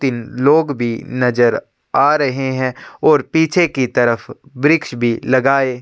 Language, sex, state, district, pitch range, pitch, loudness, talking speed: Hindi, male, Chhattisgarh, Sukma, 120-145 Hz, 130 Hz, -16 LUFS, 155 wpm